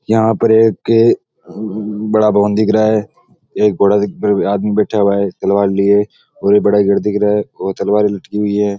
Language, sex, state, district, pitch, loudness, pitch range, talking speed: Rajasthani, male, Rajasthan, Nagaur, 105 Hz, -14 LUFS, 100-110 Hz, 190 wpm